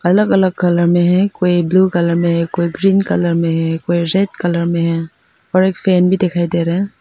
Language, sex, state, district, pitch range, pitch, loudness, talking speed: Hindi, female, Arunachal Pradesh, Papum Pare, 170-185 Hz, 175 Hz, -15 LUFS, 240 wpm